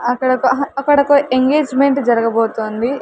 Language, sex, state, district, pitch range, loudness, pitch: Telugu, female, Andhra Pradesh, Sri Satya Sai, 240-280 Hz, -15 LUFS, 260 Hz